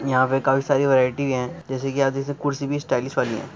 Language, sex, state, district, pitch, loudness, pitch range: Hindi, male, Uttar Pradesh, Muzaffarnagar, 135 Hz, -22 LUFS, 130-140 Hz